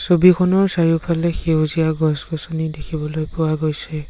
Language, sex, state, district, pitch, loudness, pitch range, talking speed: Assamese, male, Assam, Sonitpur, 160 Hz, -19 LUFS, 155-170 Hz, 115 wpm